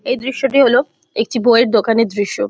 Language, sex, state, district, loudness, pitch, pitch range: Bengali, female, West Bengal, Jhargram, -15 LUFS, 235 Hz, 225-260 Hz